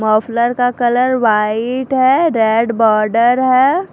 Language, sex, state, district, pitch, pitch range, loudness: Hindi, female, Punjab, Fazilka, 240 Hz, 220-255 Hz, -13 LUFS